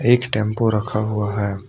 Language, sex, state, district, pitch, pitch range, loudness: Hindi, male, Assam, Kamrup Metropolitan, 110 Hz, 105-115 Hz, -20 LUFS